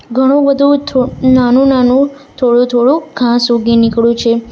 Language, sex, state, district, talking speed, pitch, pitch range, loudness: Gujarati, female, Gujarat, Valsad, 145 wpm, 255 Hz, 240-275 Hz, -11 LUFS